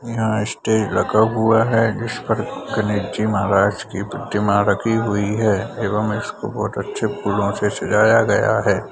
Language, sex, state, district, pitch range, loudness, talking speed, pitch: Hindi, male, Bihar, Madhepura, 100-110 Hz, -19 LUFS, 160 wpm, 105 Hz